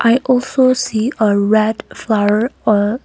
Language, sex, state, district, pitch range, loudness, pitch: English, female, Nagaland, Kohima, 210-250 Hz, -15 LUFS, 220 Hz